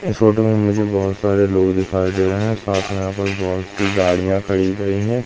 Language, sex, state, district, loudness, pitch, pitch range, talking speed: Hindi, male, Madhya Pradesh, Katni, -18 LUFS, 100 Hz, 95-105 Hz, 240 wpm